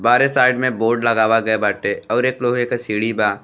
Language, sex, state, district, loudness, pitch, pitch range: Bhojpuri, male, Uttar Pradesh, Deoria, -17 LUFS, 115 Hz, 110-125 Hz